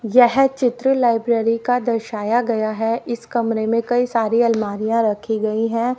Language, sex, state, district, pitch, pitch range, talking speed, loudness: Hindi, female, Haryana, Rohtak, 230 Hz, 225-245 Hz, 160 wpm, -19 LUFS